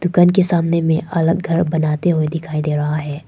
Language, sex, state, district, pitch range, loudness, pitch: Hindi, female, Arunachal Pradesh, Papum Pare, 155-175 Hz, -17 LUFS, 165 Hz